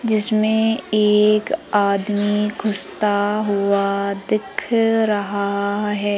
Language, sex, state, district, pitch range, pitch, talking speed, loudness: Hindi, female, Madhya Pradesh, Umaria, 200-215 Hz, 210 Hz, 80 wpm, -18 LUFS